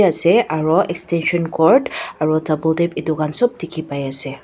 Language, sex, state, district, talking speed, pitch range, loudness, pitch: Nagamese, female, Nagaland, Dimapur, 175 wpm, 155-170 Hz, -17 LUFS, 160 Hz